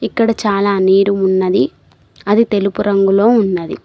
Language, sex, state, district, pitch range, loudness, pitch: Telugu, female, Telangana, Mahabubabad, 195-215 Hz, -14 LUFS, 200 Hz